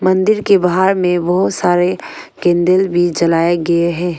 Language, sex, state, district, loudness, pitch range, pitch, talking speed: Hindi, female, Arunachal Pradesh, Longding, -14 LUFS, 170-185 Hz, 175 Hz, 155 wpm